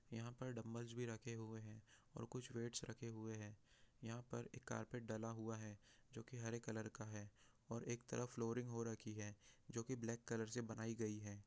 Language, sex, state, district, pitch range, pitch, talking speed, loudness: Hindi, male, Bihar, Jahanabad, 110-120 Hz, 115 Hz, 195 wpm, -50 LUFS